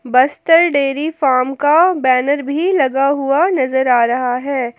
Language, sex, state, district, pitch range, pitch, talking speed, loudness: Hindi, female, Jharkhand, Palamu, 255-295 Hz, 275 Hz, 140 wpm, -14 LUFS